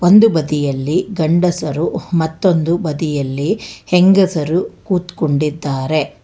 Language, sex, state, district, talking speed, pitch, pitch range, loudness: Kannada, female, Karnataka, Bangalore, 65 wpm, 160 Hz, 150-180 Hz, -16 LUFS